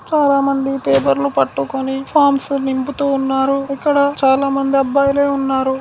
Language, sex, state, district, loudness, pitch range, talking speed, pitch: Telugu, female, Telangana, Karimnagar, -16 LUFS, 265-280 Hz, 125 wpm, 275 Hz